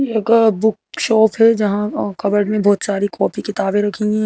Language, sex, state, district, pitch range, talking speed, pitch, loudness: Hindi, female, Madhya Pradesh, Bhopal, 205-220 Hz, 210 wpm, 210 Hz, -16 LUFS